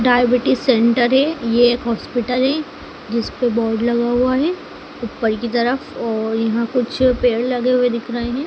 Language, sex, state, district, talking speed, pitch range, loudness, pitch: Hindi, female, Madhya Pradesh, Dhar, 175 wpm, 235-250 Hz, -18 LUFS, 240 Hz